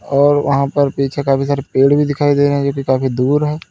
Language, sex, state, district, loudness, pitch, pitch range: Hindi, male, Uttar Pradesh, Lalitpur, -15 LUFS, 140 Hz, 135-145 Hz